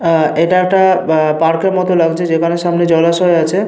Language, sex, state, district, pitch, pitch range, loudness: Bengali, male, Jharkhand, Sahebganj, 170 Hz, 165-180 Hz, -12 LUFS